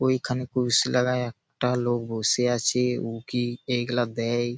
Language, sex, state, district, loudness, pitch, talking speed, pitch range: Bengali, male, West Bengal, Malda, -25 LUFS, 125 Hz, 130 wpm, 120-125 Hz